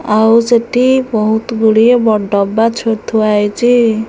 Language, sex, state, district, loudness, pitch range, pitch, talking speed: Odia, female, Odisha, Khordha, -12 LUFS, 215-235 Hz, 225 Hz, 130 wpm